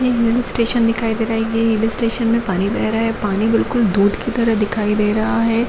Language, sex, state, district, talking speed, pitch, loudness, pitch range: Hindi, female, Jharkhand, Jamtara, 220 wpm, 225 Hz, -17 LUFS, 215-230 Hz